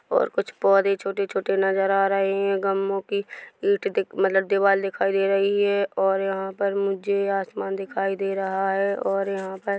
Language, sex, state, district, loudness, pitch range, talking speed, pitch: Hindi, male, Chhattisgarh, Korba, -23 LUFS, 195-200 Hz, 195 wpm, 195 Hz